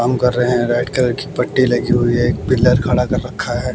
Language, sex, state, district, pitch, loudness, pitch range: Hindi, male, Bihar, West Champaran, 125 Hz, -16 LUFS, 120-125 Hz